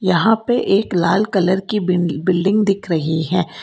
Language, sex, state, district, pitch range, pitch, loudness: Hindi, female, Karnataka, Bangalore, 175-205 Hz, 185 Hz, -17 LUFS